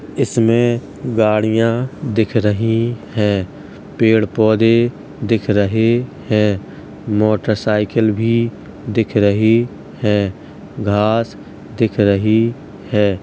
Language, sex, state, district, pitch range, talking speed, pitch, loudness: Hindi, male, Uttar Pradesh, Hamirpur, 105-115 Hz, 95 wpm, 110 Hz, -16 LUFS